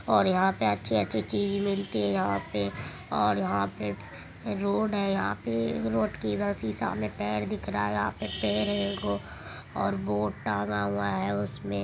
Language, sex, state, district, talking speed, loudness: Maithili, male, Bihar, Supaul, 170 wpm, -29 LUFS